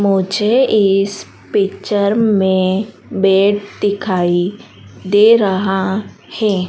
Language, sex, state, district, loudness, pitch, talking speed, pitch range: Hindi, female, Madhya Pradesh, Dhar, -15 LUFS, 200 Hz, 80 wpm, 190-210 Hz